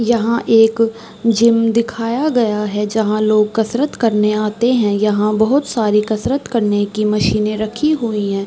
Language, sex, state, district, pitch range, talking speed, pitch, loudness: Hindi, female, Uttar Pradesh, Varanasi, 210-230 Hz, 155 wpm, 220 Hz, -16 LUFS